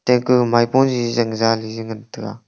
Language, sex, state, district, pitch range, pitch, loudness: Wancho, male, Arunachal Pradesh, Longding, 110-125 Hz, 120 Hz, -17 LUFS